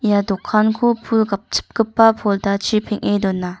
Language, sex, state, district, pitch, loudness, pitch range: Garo, female, Meghalaya, North Garo Hills, 210 Hz, -18 LUFS, 200-220 Hz